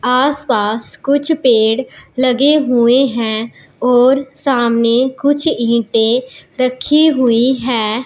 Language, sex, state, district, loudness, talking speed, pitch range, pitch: Hindi, male, Punjab, Pathankot, -14 LUFS, 105 wpm, 235-270 Hz, 250 Hz